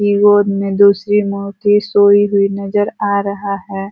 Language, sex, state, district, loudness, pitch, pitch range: Hindi, female, Uttar Pradesh, Ghazipur, -14 LUFS, 200 Hz, 200-205 Hz